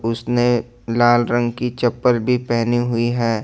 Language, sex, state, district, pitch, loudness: Hindi, male, Jharkhand, Ranchi, 120 Hz, -18 LUFS